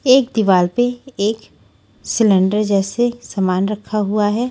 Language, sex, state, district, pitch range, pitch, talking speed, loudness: Hindi, female, Maharashtra, Washim, 200-240 Hz, 210 Hz, 135 wpm, -17 LUFS